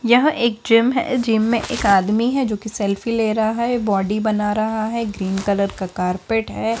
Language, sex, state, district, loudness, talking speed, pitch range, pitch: Hindi, female, Bihar, Darbhanga, -19 LUFS, 220 wpm, 200-235 Hz, 220 Hz